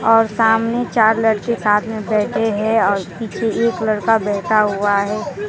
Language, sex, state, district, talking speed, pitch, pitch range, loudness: Hindi, female, West Bengal, Alipurduar, 165 wpm, 220 Hz, 210-225 Hz, -17 LUFS